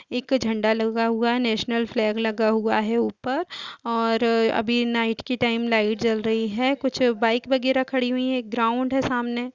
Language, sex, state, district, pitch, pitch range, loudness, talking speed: Hindi, female, Chhattisgarh, Kabirdham, 235 Hz, 225-250 Hz, -23 LUFS, 190 wpm